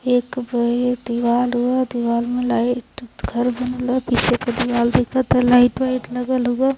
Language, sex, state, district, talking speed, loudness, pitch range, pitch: Hindi, female, Uttar Pradesh, Varanasi, 175 wpm, -19 LUFS, 240-250 Hz, 245 Hz